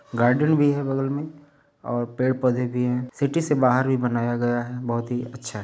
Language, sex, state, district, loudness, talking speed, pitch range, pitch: Hindi, male, Uttar Pradesh, Varanasi, -23 LUFS, 225 wpm, 120-140 Hz, 125 Hz